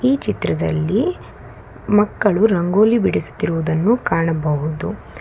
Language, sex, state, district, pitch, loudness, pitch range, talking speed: Kannada, female, Karnataka, Bangalore, 175 Hz, -18 LUFS, 155-215 Hz, 70 wpm